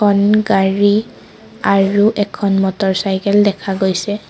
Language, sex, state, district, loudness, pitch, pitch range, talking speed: Assamese, female, Assam, Sonitpur, -15 LUFS, 200 Hz, 195-205 Hz, 85 wpm